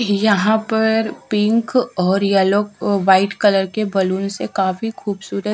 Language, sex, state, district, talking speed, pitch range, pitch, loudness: Hindi, female, Punjab, Fazilka, 140 wpm, 195-220 Hz, 205 Hz, -17 LUFS